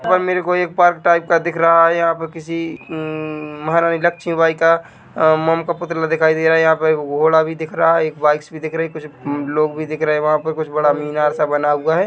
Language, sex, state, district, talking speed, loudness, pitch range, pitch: Hindi, male, Chhattisgarh, Bilaspur, 260 wpm, -17 LUFS, 155-165 Hz, 160 Hz